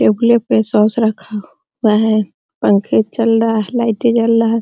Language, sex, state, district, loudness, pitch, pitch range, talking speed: Hindi, female, Bihar, Araria, -14 LUFS, 225 Hz, 215-230 Hz, 155 wpm